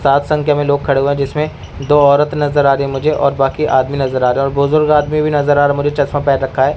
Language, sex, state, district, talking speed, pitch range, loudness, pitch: Hindi, male, Delhi, New Delhi, 285 wpm, 140-150 Hz, -14 LUFS, 145 Hz